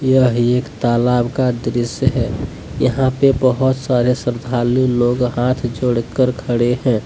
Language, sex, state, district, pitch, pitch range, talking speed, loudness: Hindi, male, Jharkhand, Deoghar, 125 Hz, 120-130 Hz, 135 wpm, -17 LUFS